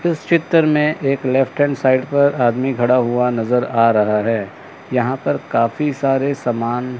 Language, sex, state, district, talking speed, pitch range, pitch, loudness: Hindi, male, Chandigarh, Chandigarh, 170 wpm, 120-140 Hz, 130 Hz, -17 LUFS